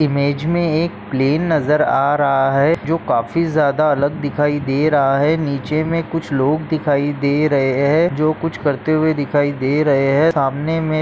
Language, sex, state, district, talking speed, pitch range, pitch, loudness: Hindi, male, Maharashtra, Solapur, 185 wpm, 140-155 Hz, 150 Hz, -17 LUFS